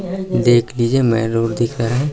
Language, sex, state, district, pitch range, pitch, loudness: Hindi, male, Chhattisgarh, Raigarh, 115-135 Hz, 120 Hz, -17 LUFS